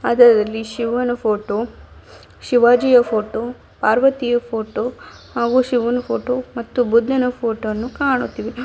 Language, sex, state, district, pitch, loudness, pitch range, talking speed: Kannada, female, Karnataka, Bidar, 240 Hz, -18 LUFS, 225-250 Hz, 105 wpm